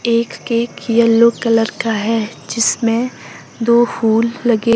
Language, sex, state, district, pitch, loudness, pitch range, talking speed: Hindi, female, Himachal Pradesh, Shimla, 230 Hz, -15 LUFS, 225-235 Hz, 125 wpm